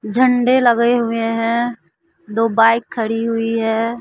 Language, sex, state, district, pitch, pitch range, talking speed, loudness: Hindi, female, Bihar, West Champaran, 230 Hz, 225-240 Hz, 135 wpm, -16 LUFS